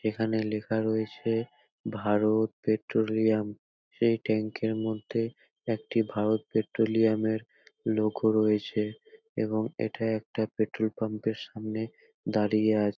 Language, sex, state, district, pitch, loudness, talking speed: Bengali, male, West Bengal, North 24 Parganas, 110 Hz, -29 LUFS, 120 wpm